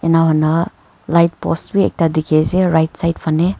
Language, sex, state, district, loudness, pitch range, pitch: Nagamese, female, Nagaland, Kohima, -16 LUFS, 160-170 Hz, 165 Hz